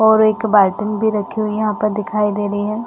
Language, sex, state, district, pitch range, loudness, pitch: Hindi, female, Chhattisgarh, Bastar, 210-220 Hz, -17 LUFS, 215 Hz